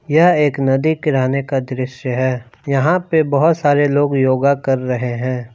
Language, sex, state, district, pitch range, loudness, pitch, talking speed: Hindi, male, Jharkhand, Palamu, 130-150 Hz, -16 LUFS, 135 Hz, 175 wpm